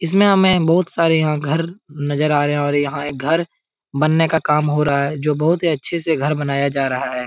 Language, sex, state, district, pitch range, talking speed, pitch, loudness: Hindi, male, Uttar Pradesh, Etah, 145-165 Hz, 245 wpm, 150 Hz, -18 LUFS